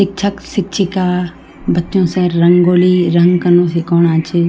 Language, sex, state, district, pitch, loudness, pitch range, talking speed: Garhwali, female, Uttarakhand, Tehri Garhwal, 180 Hz, -13 LUFS, 170-185 Hz, 120 wpm